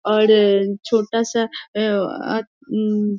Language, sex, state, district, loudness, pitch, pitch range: Hindi, female, Bihar, Muzaffarpur, -19 LUFS, 215 Hz, 210-230 Hz